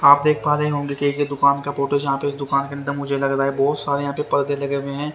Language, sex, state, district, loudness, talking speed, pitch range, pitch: Hindi, male, Haryana, Rohtak, -20 LUFS, 340 wpm, 140-145 Hz, 140 Hz